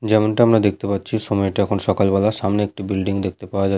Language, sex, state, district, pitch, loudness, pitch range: Bengali, male, West Bengal, Paschim Medinipur, 100 Hz, -19 LUFS, 95-110 Hz